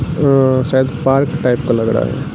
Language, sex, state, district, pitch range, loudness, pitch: Hindi, male, Bihar, Katihar, 125-140 Hz, -14 LUFS, 130 Hz